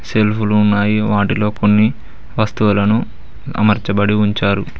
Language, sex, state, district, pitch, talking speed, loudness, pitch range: Telugu, male, Telangana, Mahabubabad, 105 Hz, 85 wpm, -15 LUFS, 105-110 Hz